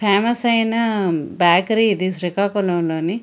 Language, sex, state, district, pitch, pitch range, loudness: Telugu, female, Andhra Pradesh, Srikakulam, 200 Hz, 175-225 Hz, -18 LUFS